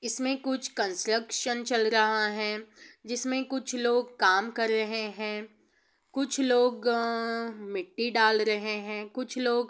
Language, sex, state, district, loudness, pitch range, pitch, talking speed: Hindi, female, Bihar, Sitamarhi, -28 LUFS, 215-245 Hz, 230 Hz, 140 wpm